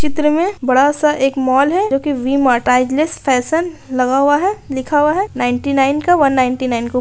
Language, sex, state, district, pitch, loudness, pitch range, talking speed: Hindi, female, Bihar, Kishanganj, 275 Hz, -15 LUFS, 255-300 Hz, 205 wpm